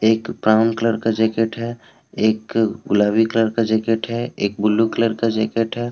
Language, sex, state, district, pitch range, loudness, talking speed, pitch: Hindi, male, Jharkhand, Deoghar, 110-115 Hz, -19 LUFS, 180 wpm, 115 Hz